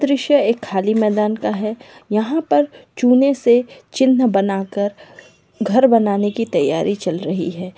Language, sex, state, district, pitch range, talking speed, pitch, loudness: Magahi, female, Bihar, Samastipur, 200-250 Hz, 160 wpm, 215 Hz, -17 LUFS